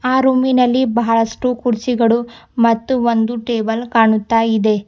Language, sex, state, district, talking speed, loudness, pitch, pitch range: Kannada, female, Karnataka, Bidar, 125 wpm, -15 LUFS, 235 Hz, 225-250 Hz